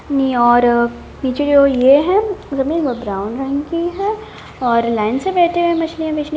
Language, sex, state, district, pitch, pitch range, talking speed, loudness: Hindi, female, Bihar, Gopalganj, 280 Hz, 245-335 Hz, 180 wpm, -16 LUFS